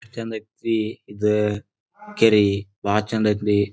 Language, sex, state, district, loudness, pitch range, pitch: Kannada, male, Karnataka, Dharwad, -22 LUFS, 105-115 Hz, 105 Hz